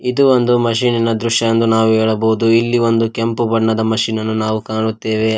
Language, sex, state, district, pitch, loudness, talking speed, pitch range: Kannada, male, Karnataka, Koppal, 115 Hz, -15 LUFS, 155 wpm, 110-115 Hz